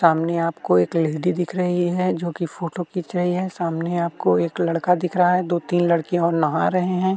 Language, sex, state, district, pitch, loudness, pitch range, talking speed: Hindi, male, Uttarakhand, Tehri Garhwal, 175 Hz, -21 LUFS, 165-180 Hz, 215 wpm